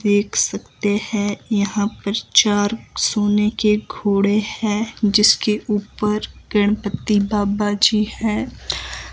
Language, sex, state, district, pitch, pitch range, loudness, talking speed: Hindi, female, Himachal Pradesh, Shimla, 210 Hz, 205-215 Hz, -19 LUFS, 105 wpm